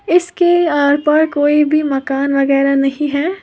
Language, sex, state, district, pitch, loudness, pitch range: Hindi, female, Uttar Pradesh, Lalitpur, 295 Hz, -14 LUFS, 275-320 Hz